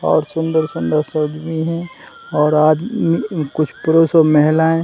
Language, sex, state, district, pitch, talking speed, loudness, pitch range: Hindi, male, Uttar Pradesh, Hamirpur, 160 Hz, 150 wpm, -16 LUFS, 155-165 Hz